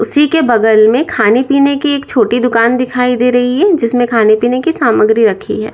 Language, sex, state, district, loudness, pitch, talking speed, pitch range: Hindi, female, Uttar Pradesh, Lalitpur, -11 LUFS, 245 Hz, 220 wpm, 230-280 Hz